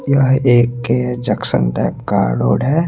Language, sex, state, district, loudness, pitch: Hindi, male, Chandigarh, Chandigarh, -15 LUFS, 120 Hz